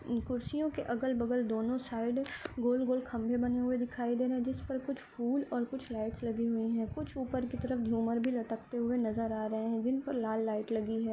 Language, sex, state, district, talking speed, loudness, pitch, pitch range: Hindi, female, Uttar Pradesh, Ghazipur, 230 wpm, -34 LUFS, 245 Hz, 230-255 Hz